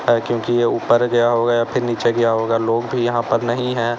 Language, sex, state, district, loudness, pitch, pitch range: Hindi, male, Uttar Pradesh, Lalitpur, -18 LUFS, 120 Hz, 115-120 Hz